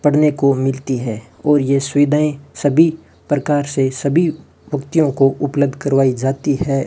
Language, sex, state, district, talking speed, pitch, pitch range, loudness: Hindi, male, Rajasthan, Bikaner, 150 wpm, 140 Hz, 135-150 Hz, -17 LUFS